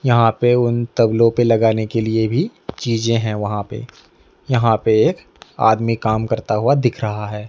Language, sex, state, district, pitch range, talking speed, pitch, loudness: Hindi, male, Odisha, Nuapada, 110-120 Hz, 185 wpm, 115 Hz, -17 LUFS